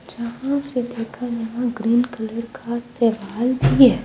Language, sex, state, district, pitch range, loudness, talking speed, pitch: Hindi, female, Bihar, Patna, 230-245 Hz, -22 LUFS, 135 wpm, 235 Hz